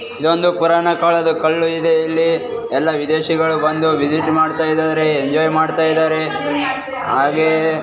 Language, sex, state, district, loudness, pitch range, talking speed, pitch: Kannada, male, Karnataka, Raichur, -16 LUFS, 155-165 Hz, 130 wpm, 160 Hz